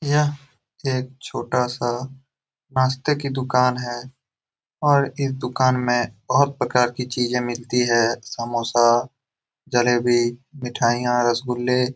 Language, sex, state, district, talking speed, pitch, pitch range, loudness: Hindi, male, Bihar, Jamui, 105 wpm, 125 Hz, 120-130 Hz, -21 LUFS